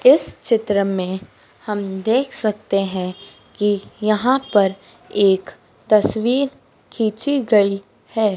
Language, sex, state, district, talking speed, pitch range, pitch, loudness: Hindi, female, Madhya Pradesh, Dhar, 105 wpm, 195-225 Hz, 210 Hz, -19 LUFS